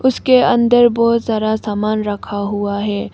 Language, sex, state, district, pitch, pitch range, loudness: Hindi, female, Arunachal Pradesh, Papum Pare, 215 Hz, 205-240 Hz, -15 LUFS